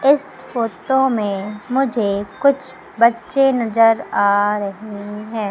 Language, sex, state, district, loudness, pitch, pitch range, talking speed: Hindi, female, Madhya Pradesh, Umaria, -18 LUFS, 225 Hz, 205-265 Hz, 110 wpm